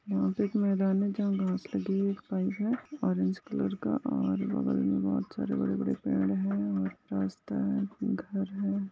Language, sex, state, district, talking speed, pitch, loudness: Hindi, female, Maharashtra, Aurangabad, 175 wpm, 95 Hz, -31 LUFS